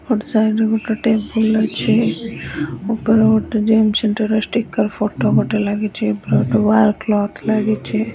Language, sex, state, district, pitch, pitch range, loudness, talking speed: Odia, female, Odisha, Nuapada, 220 Hz, 215-220 Hz, -17 LUFS, 140 wpm